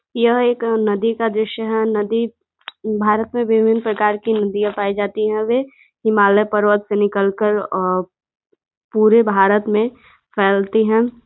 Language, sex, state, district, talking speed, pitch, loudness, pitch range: Hindi, female, Uttar Pradesh, Gorakhpur, 155 wpm, 215 Hz, -17 LUFS, 205-225 Hz